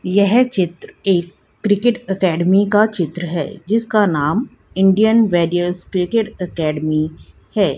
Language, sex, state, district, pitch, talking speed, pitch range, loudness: Hindi, female, Haryana, Jhajjar, 190 Hz, 115 wpm, 175-210 Hz, -17 LUFS